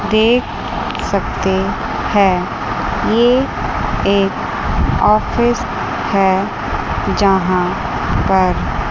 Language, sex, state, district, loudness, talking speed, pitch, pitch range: Hindi, female, Chandigarh, Chandigarh, -16 LUFS, 65 wpm, 200 Hz, 190-230 Hz